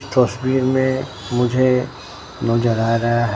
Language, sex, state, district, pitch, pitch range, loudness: Hindi, male, Bihar, Katihar, 125 Hz, 115-130 Hz, -18 LUFS